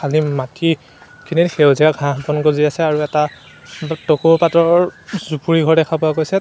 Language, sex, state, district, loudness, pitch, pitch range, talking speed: Assamese, male, Assam, Sonitpur, -16 LUFS, 155 Hz, 150-165 Hz, 160 wpm